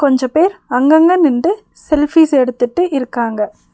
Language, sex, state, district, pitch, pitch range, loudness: Tamil, female, Tamil Nadu, Nilgiris, 290 Hz, 250-330 Hz, -13 LUFS